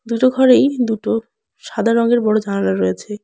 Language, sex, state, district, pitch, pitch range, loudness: Bengali, female, West Bengal, Alipurduar, 225 Hz, 210-245 Hz, -16 LUFS